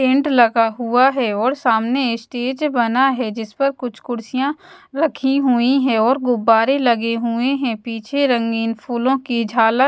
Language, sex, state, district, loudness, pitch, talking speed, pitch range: Hindi, female, Bihar, West Champaran, -18 LUFS, 245 Hz, 160 wpm, 230-270 Hz